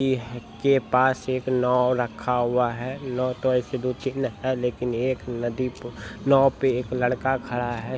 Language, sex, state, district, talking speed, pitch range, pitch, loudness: Maithili, male, Bihar, Supaul, 190 wpm, 120-130 Hz, 125 Hz, -24 LUFS